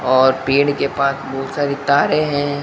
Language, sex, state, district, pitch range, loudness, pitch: Hindi, male, Rajasthan, Bikaner, 135-145 Hz, -17 LUFS, 140 Hz